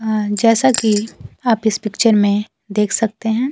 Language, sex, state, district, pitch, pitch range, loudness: Hindi, female, Bihar, Kaimur, 220 Hz, 210-230 Hz, -16 LUFS